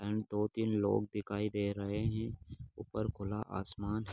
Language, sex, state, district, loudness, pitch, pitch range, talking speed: Hindi, male, Bihar, Darbhanga, -37 LUFS, 105 Hz, 100-110 Hz, 160 wpm